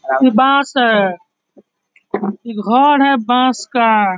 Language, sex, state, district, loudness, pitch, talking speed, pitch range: Hindi, male, Bihar, East Champaran, -14 LUFS, 235 Hz, 130 wpm, 200-265 Hz